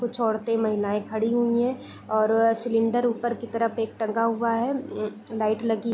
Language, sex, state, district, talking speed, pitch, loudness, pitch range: Hindi, female, Bihar, Gopalganj, 200 wpm, 225 Hz, -25 LUFS, 220-235 Hz